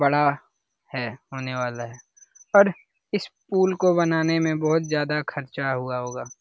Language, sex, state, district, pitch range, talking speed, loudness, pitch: Hindi, male, Bihar, Lakhisarai, 130-170 Hz, 150 wpm, -24 LUFS, 150 Hz